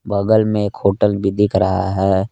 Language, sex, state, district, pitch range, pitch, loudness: Hindi, male, Jharkhand, Palamu, 95-105 Hz, 100 Hz, -16 LUFS